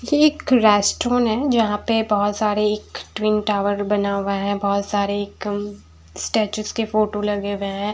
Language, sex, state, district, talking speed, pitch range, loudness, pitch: Hindi, female, Bihar, Patna, 175 wpm, 200-220 Hz, -20 LUFS, 210 Hz